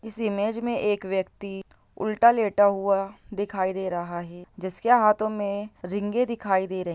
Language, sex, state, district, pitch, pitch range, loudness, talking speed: Hindi, female, Bihar, Lakhisarai, 200 Hz, 190-215 Hz, -25 LUFS, 175 wpm